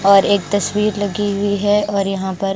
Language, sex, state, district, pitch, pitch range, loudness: Hindi, female, Bihar, Patna, 200 Hz, 195-205 Hz, -17 LUFS